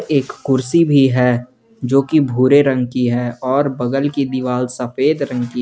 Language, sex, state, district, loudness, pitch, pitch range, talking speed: Hindi, male, Jharkhand, Garhwa, -16 LUFS, 130 Hz, 125-140 Hz, 180 wpm